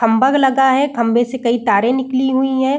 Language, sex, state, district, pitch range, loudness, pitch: Hindi, female, Bihar, Saran, 240-265 Hz, -15 LUFS, 260 Hz